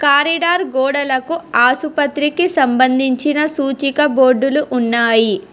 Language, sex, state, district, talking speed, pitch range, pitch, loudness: Telugu, female, Telangana, Hyderabad, 75 wpm, 255-300 Hz, 280 Hz, -15 LUFS